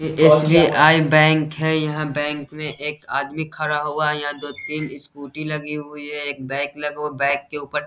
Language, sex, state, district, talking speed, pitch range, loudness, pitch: Hindi, male, Bihar, Saharsa, 215 wpm, 145-155 Hz, -20 LUFS, 150 Hz